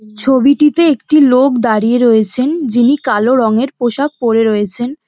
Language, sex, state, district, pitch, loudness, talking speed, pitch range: Bengali, female, West Bengal, Dakshin Dinajpur, 250 Hz, -12 LUFS, 130 wpm, 225-275 Hz